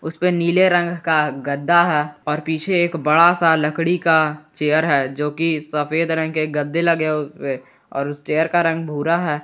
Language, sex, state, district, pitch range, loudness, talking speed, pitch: Hindi, male, Jharkhand, Garhwa, 150-170 Hz, -18 LUFS, 190 wpm, 155 Hz